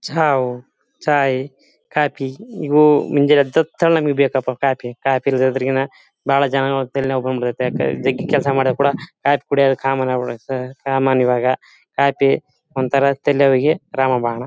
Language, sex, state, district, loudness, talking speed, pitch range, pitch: Kannada, male, Karnataka, Bellary, -18 LUFS, 140 wpm, 130-140 Hz, 135 Hz